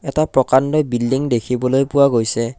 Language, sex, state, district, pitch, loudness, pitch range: Assamese, male, Assam, Kamrup Metropolitan, 130 Hz, -16 LUFS, 120-140 Hz